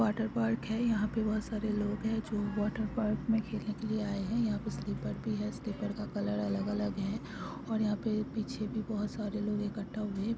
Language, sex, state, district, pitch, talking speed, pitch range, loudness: Hindi, female, Chhattisgarh, Sukma, 215 Hz, 210 wpm, 205-220 Hz, -34 LUFS